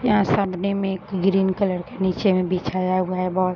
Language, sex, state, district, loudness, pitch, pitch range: Hindi, female, Uttar Pradesh, Varanasi, -22 LUFS, 190 Hz, 185-195 Hz